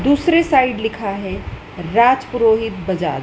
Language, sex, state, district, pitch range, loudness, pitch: Hindi, female, Madhya Pradesh, Dhar, 195-260 Hz, -17 LUFS, 225 Hz